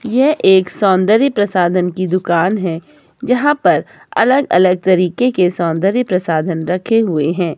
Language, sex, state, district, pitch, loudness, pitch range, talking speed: Hindi, male, Himachal Pradesh, Shimla, 185 Hz, -14 LUFS, 175-225 Hz, 145 wpm